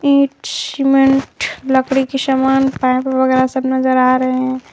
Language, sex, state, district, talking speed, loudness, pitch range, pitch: Hindi, female, Jharkhand, Palamu, 150 wpm, -15 LUFS, 260-270 Hz, 265 Hz